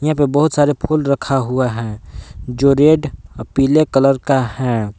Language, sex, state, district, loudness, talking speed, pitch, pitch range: Hindi, male, Jharkhand, Palamu, -15 LUFS, 180 wpm, 135 Hz, 125-145 Hz